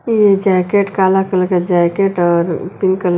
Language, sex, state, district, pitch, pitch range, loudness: Hindi, female, Uttar Pradesh, Lucknow, 190 Hz, 175-195 Hz, -14 LUFS